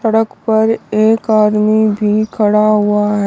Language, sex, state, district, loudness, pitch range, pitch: Hindi, male, Uttar Pradesh, Shamli, -13 LUFS, 210-220 Hz, 215 Hz